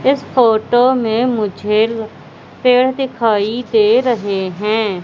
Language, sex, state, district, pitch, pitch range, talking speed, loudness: Hindi, female, Madhya Pradesh, Katni, 230 Hz, 215-255 Hz, 105 wpm, -15 LUFS